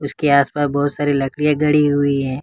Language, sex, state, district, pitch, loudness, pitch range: Hindi, male, Jharkhand, Ranchi, 145 Hz, -17 LUFS, 140-150 Hz